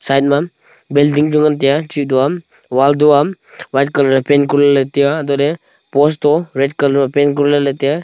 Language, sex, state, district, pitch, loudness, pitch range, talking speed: Wancho, male, Arunachal Pradesh, Longding, 145 Hz, -14 LUFS, 140-150 Hz, 260 wpm